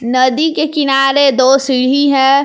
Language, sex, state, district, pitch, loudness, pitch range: Hindi, female, Jharkhand, Palamu, 270 Hz, -11 LUFS, 260-285 Hz